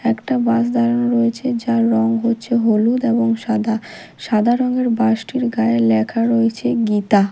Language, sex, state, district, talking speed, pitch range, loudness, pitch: Bengali, female, Odisha, Malkangiri, 140 wpm, 225-240 Hz, -17 LUFS, 230 Hz